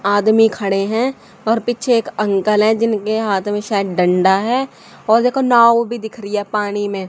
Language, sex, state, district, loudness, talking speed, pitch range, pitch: Hindi, female, Haryana, Charkhi Dadri, -16 LUFS, 195 wpm, 200-235 Hz, 215 Hz